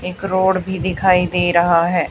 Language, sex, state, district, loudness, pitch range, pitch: Hindi, female, Haryana, Charkhi Dadri, -16 LUFS, 175-185 Hz, 180 Hz